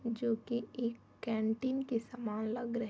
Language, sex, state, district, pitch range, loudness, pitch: Hindi, female, Uttar Pradesh, Jyotiba Phule Nagar, 225-240 Hz, -37 LUFS, 235 Hz